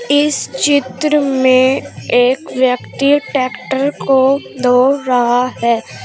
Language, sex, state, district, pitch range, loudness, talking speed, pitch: Hindi, female, Uttar Pradesh, Shamli, 250-280 Hz, -14 LUFS, 100 wpm, 260 Hz